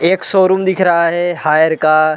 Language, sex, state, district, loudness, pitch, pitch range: Hindi, male, Chhattisgarh, Balrampur, -13 LUFS, 170 Hz, 155-185 Hz